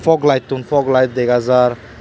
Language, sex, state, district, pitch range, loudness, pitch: Chakma, male, Tripura, Dhalai, 125-140 Hz, -15 LUFS, 130 Hz